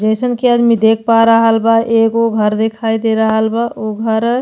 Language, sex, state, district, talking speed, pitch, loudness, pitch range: Bhojpuri, female, Uttar Pradesh, Deoria, 215 wpm, 225 Hz, -13 LUFS, 220-230 Hz